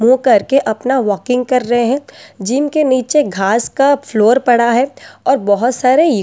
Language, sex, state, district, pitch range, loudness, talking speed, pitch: Hindi, female, Delhi, New Delhi, 235-275 Hz, -14 LUFS, 165 wpm, 250 Hz